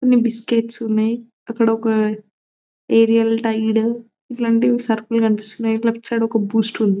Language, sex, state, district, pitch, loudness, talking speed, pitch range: Telugu, female, Telangana, Nalgonda, 225 Hz, -18 LUFS, 130 wpm, 220-230 Hz